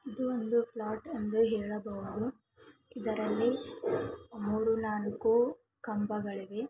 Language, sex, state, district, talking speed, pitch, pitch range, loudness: Kannada, female, Karnataka, Belgaum, 80 wpm, 225 Hz, 215-240 Hz, -33 LUFS